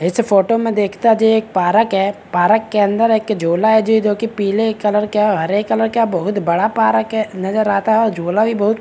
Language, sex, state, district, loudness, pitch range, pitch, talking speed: Hindi, male, Bihar, Begusarai, -15 LUFS, 195-220 Hz, 210 Hz, 230 wpm